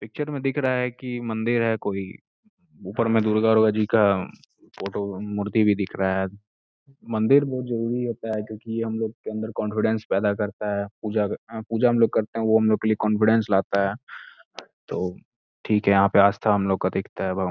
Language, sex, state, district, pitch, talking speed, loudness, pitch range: Hindi, male, Uttar Pradesh, Gorakhpur, 110 Hz, 210 wpm, -23 LUFS, 100-115 Hz